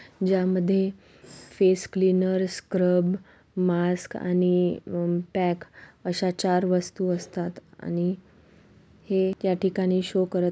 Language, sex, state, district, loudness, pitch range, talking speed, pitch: Marathi, female, Maharashtra, Solapur, -25 LUFS, 180-190 Hz, 105 wpm, 185 Hz